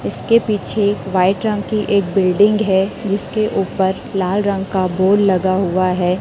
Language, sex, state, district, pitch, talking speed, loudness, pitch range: Hindi, female, Chhattisgarh, Raipur, 195 Hz, 165 wpm, -16 LUFS, 185-205 Hz